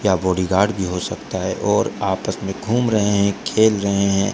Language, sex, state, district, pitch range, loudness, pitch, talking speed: Hindi, male, Rajasthan, Bikaner, 95-105 Hz, -19 LUFS, 100 Hz, 210 wpm